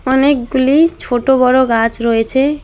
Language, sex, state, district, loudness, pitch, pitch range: Bengali, female, West Bengal, Alipurduar, -13 LUFS, 260 Hz, 240-275 Hz